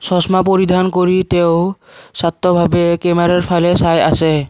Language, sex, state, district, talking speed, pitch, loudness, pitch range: Assamese, male, Assam, Kamrup Metropolitan, 120 wpm, 175 Hz, -13 LUFS, 170-180 Hz